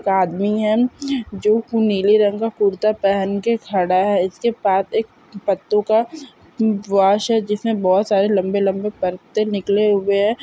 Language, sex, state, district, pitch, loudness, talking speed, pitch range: Hindi, female, Maharashtra, Sindhudurg, 210 Hz, -18 LUFS, 155 wpm, 195-220 Hz